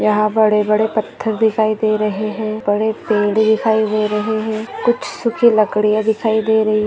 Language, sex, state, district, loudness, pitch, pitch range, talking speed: Hindi, female, Maharashtra, Dhule, -16 LUFS, 215 Hz, 210-220 Hz, 185 wpm